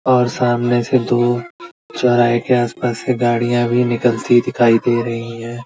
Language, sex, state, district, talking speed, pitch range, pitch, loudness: Hindi, male, Uttar Pradesh, Budaun, 160 wpm, 120-125 Hz, 120 Hz, -16 LUFS